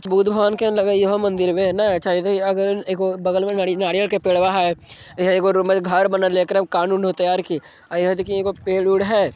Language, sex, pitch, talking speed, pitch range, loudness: Maithili, male, 190 Hz, 255 wpm, 185-195 Hz, -19 LUFS